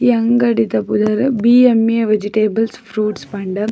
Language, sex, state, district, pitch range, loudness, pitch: Tulu, female, Karnataka, Dakshina Kannada, 210-235 Hz, -15 LUFS, 225 Hz